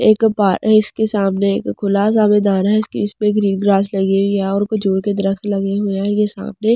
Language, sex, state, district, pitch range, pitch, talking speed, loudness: Hindi, female, Delhi, New Delhi, 195-210 Hz, 200 Hz, 240 wpm, -16 LUFS